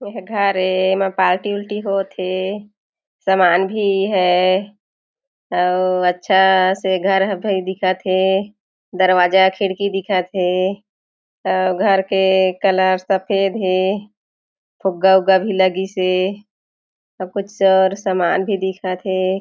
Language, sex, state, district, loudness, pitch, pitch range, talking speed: Chhattisgarhi, female, Chhattisgarh, Jashpur, -17 LUFS, 190 Hz, 185-200 Hz, 130 wpm